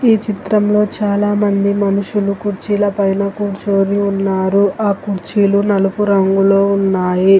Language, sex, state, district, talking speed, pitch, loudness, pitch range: Telugu, female, Telangana, Hyderabad, 105 wpm, 200 Hz, -15 LUFS, 195-205 Hz